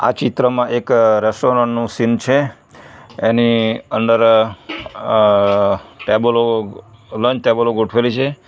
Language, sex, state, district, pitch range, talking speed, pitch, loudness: Gujarati, male, Gujarat, Valsad, 110-120 Hz, 100 wpm, 115 Hz, -15 LUFS